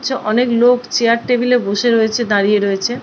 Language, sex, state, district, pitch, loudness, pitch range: Bengali, female, West Bengal, Purulia, 235 Hz, -15 LUFS, 215-245 Hz